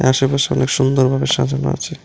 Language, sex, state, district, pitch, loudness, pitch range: Bengali, male, Tripura, West Tripura, 130 Hz, -16 LUFS, 130-135 Hz